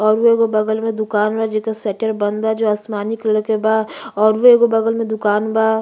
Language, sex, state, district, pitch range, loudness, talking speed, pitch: Bhojpuri, female, Uttar Pradesh, Ghazipur, 215-225 Hz, -17 LUFS, 215 wpm, 220 Hz